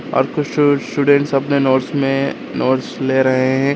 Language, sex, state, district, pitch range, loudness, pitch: Hindi, male, Karnataka, Bangalore, 130-145 Hz, -16 LUFS, 135 Hz